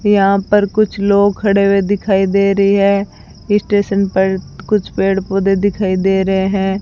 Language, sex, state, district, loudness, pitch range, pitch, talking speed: Hindi, female, Rajasthan, Bikaner, -14 LUFS, 195-205 Hz, 200 Hz, 165 wpm